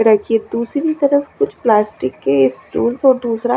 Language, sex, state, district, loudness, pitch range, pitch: Hindi, female, Chandigarh, Chandigarh, -16 LUFS, 210-280 Hz, 235 Hz